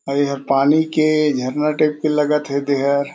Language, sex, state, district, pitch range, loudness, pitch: Chhattisgarhi, male, Chhattisgarh, Korba, 140-150 Hz, -18 LUFS, 145 Hz